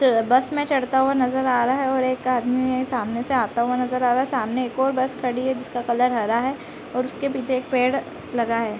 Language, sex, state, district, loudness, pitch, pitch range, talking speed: Hindi, female, Bihar, Gopalganj, -22 LUFS, 255 Hz, 245-260 Hz, 250 wpm